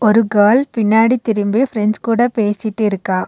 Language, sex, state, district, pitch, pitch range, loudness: Tamil, female, Tamil Nadu, Nilgiris, 220 Hz, 210-230 Hz, -15 LUFS